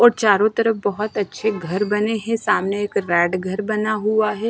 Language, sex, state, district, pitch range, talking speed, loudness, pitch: Hindi, female, Himachal Pradesh, Shimla, 200-220 Hz, 200 wpm, -20 LUFS, 210 Hz